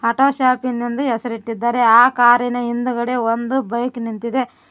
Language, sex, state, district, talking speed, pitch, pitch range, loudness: Kannada, female, Karnataka, Koppal, 140 wpm, 240 Hz, 235-250 Hz, -17 LUFS